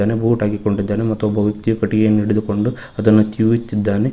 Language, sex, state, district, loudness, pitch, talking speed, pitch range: Kannada, male, Karnataka, Koppal, -17 LUFS, 105 Hz, 130 wpm, 105-110 Hz